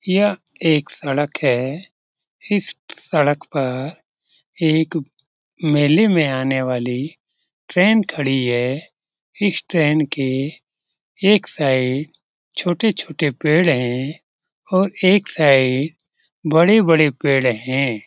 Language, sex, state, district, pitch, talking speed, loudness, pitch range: Hindi, male, Bihar, Jamui, 155 Hz, 105 wpm, -18 LUFS, 135-175 Hz